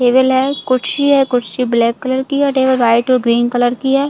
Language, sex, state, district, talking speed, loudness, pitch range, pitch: Hindi, female, Chhattisgarh, Bilaspur, 235 wpm, -14 LUFS, 245-270 Hz, 255 Hz